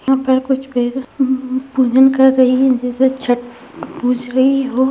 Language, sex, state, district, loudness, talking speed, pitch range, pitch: Hindi, female, Bihar, Saharsa, -15 LUFS, 145 wpm, 250-265 Hz, 260 Hz